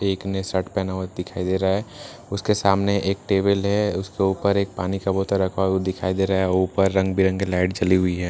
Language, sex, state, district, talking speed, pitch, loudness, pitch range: Hindi, male, Bihar, Katihar, 265 wpm, 95 Hz, -22 LUFS, 95-100 Hz